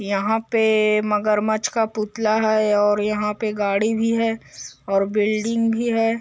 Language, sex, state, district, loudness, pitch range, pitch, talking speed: Hindi, male, Chhattisgarh, Korba, -20 LUFS, 210-225 Hz, 215 Hz, 165 wpm